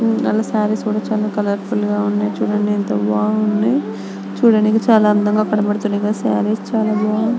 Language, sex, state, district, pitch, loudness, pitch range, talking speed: Telugu, female, Andhra Pradesh, Anantapur, 210 Hz, -17 LUFS, 200-215 Hz, 120 wpm